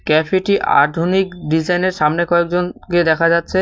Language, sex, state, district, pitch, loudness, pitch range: Bengali, male, West Bengal, Cooch Behar, 175 Hz, -16 LUFS, 160-185 Hz